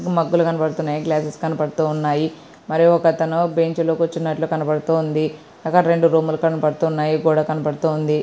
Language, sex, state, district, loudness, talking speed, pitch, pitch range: Telugu, female, Andhra Pradesh, Srikakulam, -19 LUFS, 130 wpm, 160 Hz, 155-165 Hz